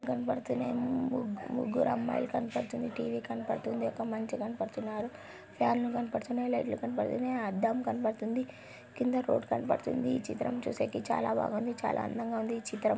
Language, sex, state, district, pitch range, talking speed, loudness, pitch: Telugu, female, Andhra Pradesh, Anantapur, 215-255 Hz, 125 wpm, -34 LUFS, 235 Hz